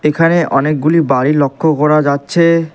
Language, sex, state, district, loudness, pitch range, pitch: Bengali, male, West Bengal, Alipurduar, -12 LUFS, 145-165 Hz, 150 Hz